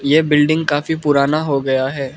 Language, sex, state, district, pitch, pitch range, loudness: Hindi, male, Arunachal Pradesh, Lower Dibang Valley, 145 Hz, 140-155 Hz, -16 LUFS